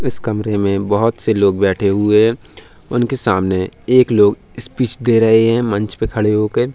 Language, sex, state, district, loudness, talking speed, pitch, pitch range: Hindi, male, Uttar Pradesh, Hamirpur, -15 LUFS, 180 wpm, 110 Hz, 100-120 Hz